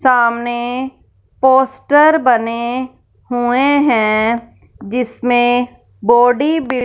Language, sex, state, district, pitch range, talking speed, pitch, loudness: Hindi, female, Punjab, Fazilka, 235-260 Hz, 70 wpm, 245 Hz, -14 LUFS